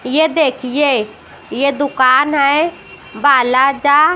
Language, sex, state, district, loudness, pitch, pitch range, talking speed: Hindi, female, Maharashtra, Washim, -13 LUFS, 280 Hz, 265-295 Hz, 85 wpm